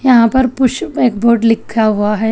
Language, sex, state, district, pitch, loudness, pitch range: Hindi, female, Telangana, Hyderabad, 230 Hz, -13 LUFS, 220-250 Hz